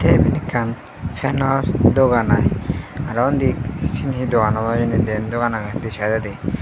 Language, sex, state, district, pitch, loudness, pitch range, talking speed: Chakma, male, Tripura, Unakoti, 115 Hz, -19 LUFS, 110-130 Hz, 165 wpm